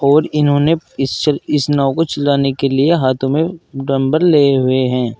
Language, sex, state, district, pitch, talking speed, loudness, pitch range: Hindi, male, Uttar Pradesh, Saharanpur, 140 Hz, 175 wpm, -15 LUFS, 135-155 Hz